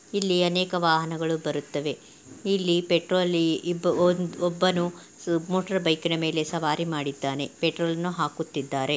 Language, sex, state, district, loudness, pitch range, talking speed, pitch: Kannada, female, Karnataka, Belgaum, -26 LUFS, 160-180 Hz, 105 wpm, 170 Hz